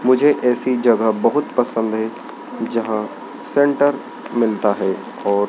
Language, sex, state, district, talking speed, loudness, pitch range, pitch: Hindi, male, Madhya Pradesh, Dhar, 120 wpm, -18 LUFS, 110-130 Hz, 115 Hz